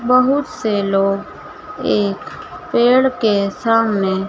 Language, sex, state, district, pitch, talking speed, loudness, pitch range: Hindi, female, Madhya Pradesh, Dhar, 225 Hz, 100 wpm, -17 LUFS, 200-255 Hz